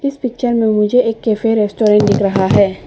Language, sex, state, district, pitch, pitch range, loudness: Hindi, female, Arunachal Pradesh, Papum Pare, 220 Hz, 205-240 Hz, -14 LUFS